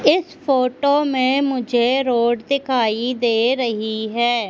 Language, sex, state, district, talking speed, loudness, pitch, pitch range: Hindi, female, Madhya Pradesh, Katni, 120 wpm, -19 LUFS, 250 Hz, 235-270 Hz